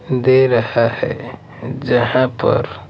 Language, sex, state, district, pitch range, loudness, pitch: Hindi, male, Maharashtra, Mumbai Suburban, 120-130 Hz, -16 LUFS, 125 Hz